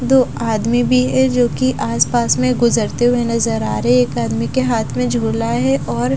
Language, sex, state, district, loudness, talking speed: Hindi, female, Bihar, Katihar, -16 LUFS, 205 wpm